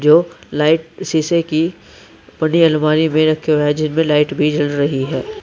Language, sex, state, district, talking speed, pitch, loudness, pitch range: Hindi, male, Uttar Pradesh, Saharanpur, 175 wpm, 155 Hz, -16 LUFS, 150-165 Hz